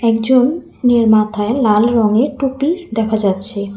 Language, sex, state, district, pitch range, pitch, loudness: Bengali, female, West Bengal, Alipurduar, 210-255 Hz, 225 Hz, -14 LUFS